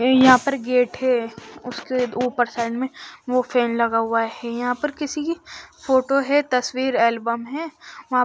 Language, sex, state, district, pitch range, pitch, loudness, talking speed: Hindi, female, Haryana, Charkhi Dadri, 235-265 Hz, 250 Hz, -21 LUFS, 165 wpm